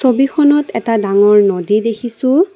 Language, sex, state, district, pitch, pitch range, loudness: Assamese, female, Assam, Kamrup Metropolitan, 230 Hz, 210-275 Hz, -13 LUFS